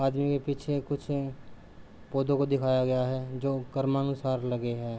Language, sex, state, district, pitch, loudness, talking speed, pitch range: Hindi, male, Uttar Pradesh, Gorakhpur, 135 Hz, -30 LUFS, 155 wpm, 130-140 Hz